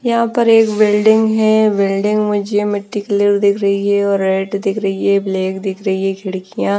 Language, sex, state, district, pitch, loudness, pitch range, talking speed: Hindi, female, Bihar, Patna, 200 Hz, -15 LUFS, 195-215 Hz, 205 wpm